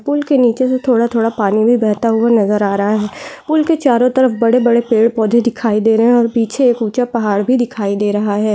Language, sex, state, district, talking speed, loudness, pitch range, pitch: Hindi, female, Chhattisgarh, Jashpur, 225 wpm, -14 LUFS, 215-245 Hz, 230 Hz